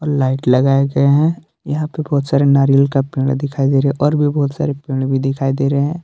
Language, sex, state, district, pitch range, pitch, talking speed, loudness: Hindi, male, Jharkhand, Palamu, 135-145 Hz, 140 Hz, 240 wpm, -16 LUFS